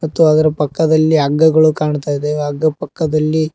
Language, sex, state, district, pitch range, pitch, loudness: Kannada, male, Karnataka, Koppal, 150-160 Hz, 155 Hz, -14 LUFS